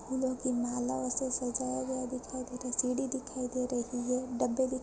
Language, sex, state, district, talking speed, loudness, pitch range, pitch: Hindi, female, Chhattisgarh, Balrampur, 225 wpm, -34 LUFS, 250-260 Hz, 255 Hz